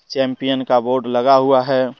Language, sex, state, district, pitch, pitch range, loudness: Hindi, male, Jharkhand, Deoghar, 130 Hz, 130-135 Hz, -16 LUFS